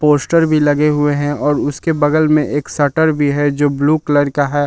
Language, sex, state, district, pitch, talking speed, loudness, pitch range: Hindi, male, Jharkhand, Palamu, 145 Hz, 230 wpm, -14 LUFS, 145-155 Hz